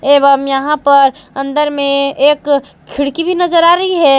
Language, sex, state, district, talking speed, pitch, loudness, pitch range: Hindi, female, Jharkhand, Palamu, 170 wpm, 285 Hz, -12 LUFS, 275-300 Hz